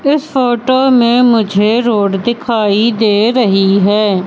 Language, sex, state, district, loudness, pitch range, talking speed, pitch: Hindi, female, Madhya Pradesh, Katni, -11 LUFS, 205-245 Hz, 125 wpm, 225 Hz